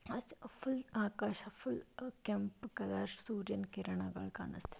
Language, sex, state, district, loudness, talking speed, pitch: Kannada, female, Karnataka, Dakshina Kannada, -42 LUFS, 100 wpm, 205 Hz